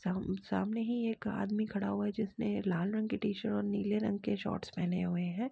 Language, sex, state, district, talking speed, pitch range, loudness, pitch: Hindi, female, Uttar Pradesh, Etah, 230 wpm, 195-215 Hz, -35 LUFS, 205 Hz